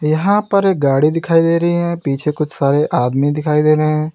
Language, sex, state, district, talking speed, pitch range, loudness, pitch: Hindi, male, Uttar Pradesh, Lalitpur, 230 wpm, 150-170 Hz, -15 LUFS, 155 Hz